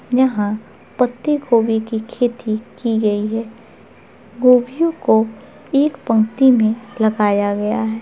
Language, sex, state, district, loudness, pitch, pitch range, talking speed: Hindi, male, Bihar, Gopalganj, -17 LUFS, 225 Hz, 220-250 Hz, 120 wpm